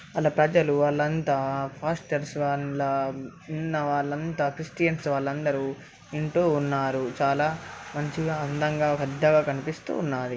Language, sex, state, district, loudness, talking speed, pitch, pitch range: Telugu, male, Telangana, Karimnagar, -26 LUFS, 95 wpm, 145 Hz, 140-155 Hz